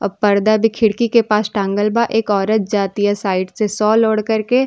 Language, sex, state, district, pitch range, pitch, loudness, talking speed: Bhojpuri, female, Uttar Pradesh, Ghazipur, 205-225 Hz, 215 Hz, -16 LUFS, 205 wpm